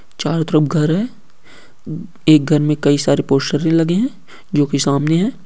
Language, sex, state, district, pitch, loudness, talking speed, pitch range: Hindi, male, Uttar Pradesh, Deoria, 155 Hz, -16 LUFS, 165 wpm, 145-180 Hz